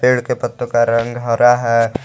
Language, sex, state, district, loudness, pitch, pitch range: Hindi, male, Jharkhand, Garhwa, -16 LUFS, 120 Hz, 115-120 Hz